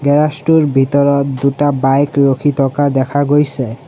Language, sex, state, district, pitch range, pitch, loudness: Assamese, male, Assam, Sonitpur, 135-145 Hz, 140 Hz, -13 LUFS